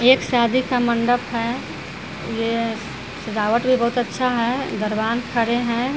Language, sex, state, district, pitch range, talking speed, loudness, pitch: Hindi, female, Bihar, Vaishali, 230-245 Hz, 150 wpm, -21 LUFS, 235 Hz